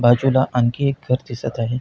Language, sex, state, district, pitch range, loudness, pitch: Marathi, male, Maharashtra, Pune, 120-130 Hz, -20 LUFS, 125 Hz